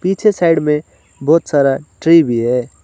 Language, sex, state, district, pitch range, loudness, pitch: Hindi, male, West Bengal, Alipurduar, 140-165 Hz, -14 LUFS, 150 Hz